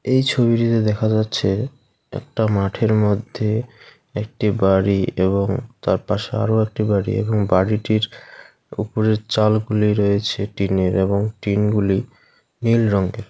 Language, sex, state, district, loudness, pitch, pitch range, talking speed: Bengali, male, West Bengal, Alipurduar, -19 LUFS, 105 Hz, 100-115 Hz, 115 wpm